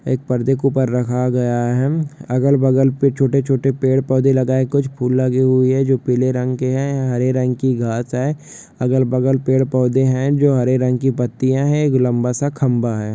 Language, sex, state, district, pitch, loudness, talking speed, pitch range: Hindi, male, Jharkhand, Sahebganj, 130 Hz, -17 LUFS, 190 wpm, 125-135 Hz